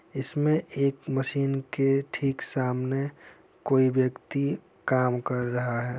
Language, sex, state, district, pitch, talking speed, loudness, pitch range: Hindi, male, Bihar, Saran, 135 Hz, 130 wpm, -27 LUFS, 125-140 Hz